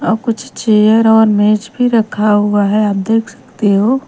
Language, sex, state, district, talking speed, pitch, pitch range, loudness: Hindi, female, Bihar, Patna, 205 wpm, 220 Hz, 210-225 Hz, -12 LUFS